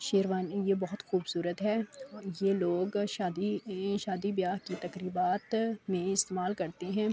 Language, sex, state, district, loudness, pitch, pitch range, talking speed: Urdu, female, Andhra Pradesh, Anantapur, -33 LUFS, 195 Hz, 185-205 Hz, 135 wpm